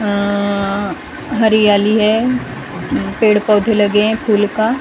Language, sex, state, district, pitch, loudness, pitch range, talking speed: Hindi, female, Maharashtra, Gondia, 210 Hz, -14 LUFS, 205-220 Hz, 110 wpm